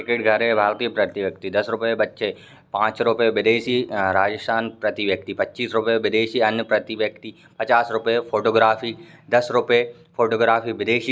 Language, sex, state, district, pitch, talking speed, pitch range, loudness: Hindi, male, Uttar Pradesh, Varanasi, 115 Hz, 135 wpm, 110-120 Hz, -21 LUFS